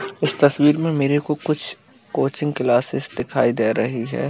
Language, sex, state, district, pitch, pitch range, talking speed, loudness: Hindi, male, Uttar Pradesh, Budaun, 145 Hz, 125-150 Hz, 180 wpm, -20 LUFS